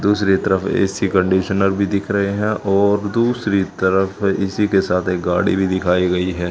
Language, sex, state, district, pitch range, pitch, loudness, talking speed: Hindi, male, Haryana, Charkhi Dadri, 95-100 Hz, 95 Hz, -18 LUFS, 185 wpm